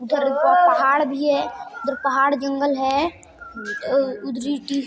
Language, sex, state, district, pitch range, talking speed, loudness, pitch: Hindi, male, Chhattisgarh, Sarguja, 275-290 Hz, 125 wpm, -20 LUFS, 280 Hz